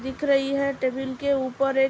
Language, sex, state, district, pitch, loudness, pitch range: Hindi, female, Uttar Pradesh, Hamirpur, 270 Hz, -24 LUFS, 265-275 Hz